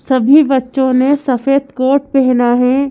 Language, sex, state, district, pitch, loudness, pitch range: Hindi, female, Madhya Pradesh, Bhopal, 265 Hz, -12 LUFS, 255-275 Hz